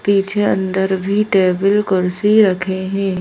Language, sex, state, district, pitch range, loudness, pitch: Hindi, female, Madhya Pradesh, Bhopal, 190-205 Hz, -16 LUFS, 195 Hz